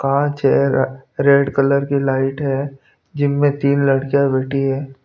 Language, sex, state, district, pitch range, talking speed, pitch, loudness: Hindi, male, Punjab, Pathankot, 135-140 Hz, 155 wpm, 140 Hz, -17 LUFS